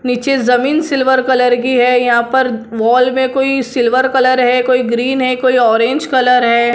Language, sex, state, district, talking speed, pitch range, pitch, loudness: Hindi, female, Maharashtra, Mumbai Suburban, 185 wpm, 245-260 Hz, 250 Hz, -12 LUFS